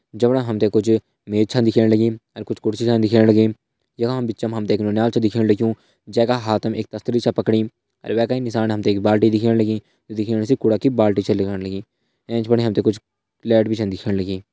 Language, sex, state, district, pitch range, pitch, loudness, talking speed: Garhwali, male, Uttarakhand, Tehri Garhwal, 105-115 Hz, 110 Hz, -19 LUFS, 205 wpm